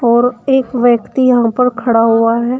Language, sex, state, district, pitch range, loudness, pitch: Hindi, female, Uttar Pradesh, Shamli, 235-250 Hz, -12 LUFS, 240 Hz